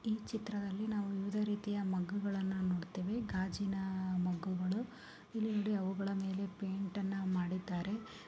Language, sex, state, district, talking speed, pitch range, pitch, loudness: Kannada, female, Karnataka, Gulbarga, 140 wpm, 190-210 Hz, 195 Hz, -38 LUFS